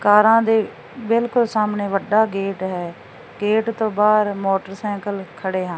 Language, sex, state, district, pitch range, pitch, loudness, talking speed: Punjabi, female, Punjab, Fazilka, 195-220 Hz, 210 Hz, -19 LUFS, 135 wpm